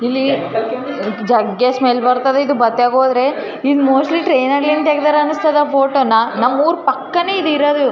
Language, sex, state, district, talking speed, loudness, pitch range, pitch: Kannada, female, Karnataka, Raichur, 55 wpm, -14 LUFS, 245-295 Hz, 270 Hz